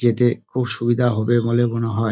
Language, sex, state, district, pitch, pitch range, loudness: Bengali, male, West Bengal, Dakshin Dinajpur, 120 Hz, 115-120 Hz, -20 LUFS